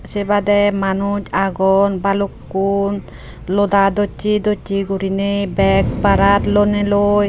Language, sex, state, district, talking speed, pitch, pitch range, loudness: Chakma, female, Tripura, Unakoti, 105 wpm, 200 Hz, 195-205 Hz, -16 LUFS